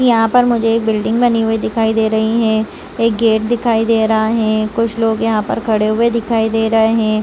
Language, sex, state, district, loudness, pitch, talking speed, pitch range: Hindi, female, Chhattisgarh, Rajnandgaon, -14 LUFS, 225 Hz, 225 wpm, 220-230 Hz